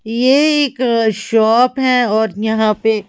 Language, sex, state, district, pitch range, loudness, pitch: Hindi, female, Chhattisgarh, Raipur, 220-255 Hz, -14 LUFS, 225 Hz